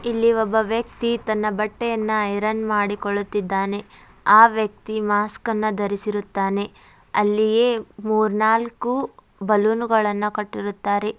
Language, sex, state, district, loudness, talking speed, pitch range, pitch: Kannada, female, Karnataka, Dharwad, -21 LUFS, 75 wpm, 205-220 Hz, 215 Hz